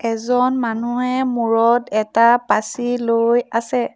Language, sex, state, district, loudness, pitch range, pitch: Assamese, female, Assam, Sonitpur, -18 LUFS, 230-245 Hz, 235 Hz